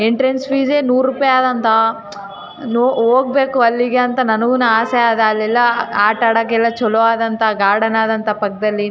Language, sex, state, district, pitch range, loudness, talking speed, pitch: Kannada, female, Karnataka, Raichur, 220-255 Hz, -15 LUFS, 115 wpm, 230 Hz